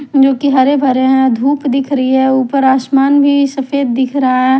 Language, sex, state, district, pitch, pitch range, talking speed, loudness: Hindi, female, Haryana, Rohtak, 270 Hz, 260-280 Hz, 210 wpm, -12 LUFS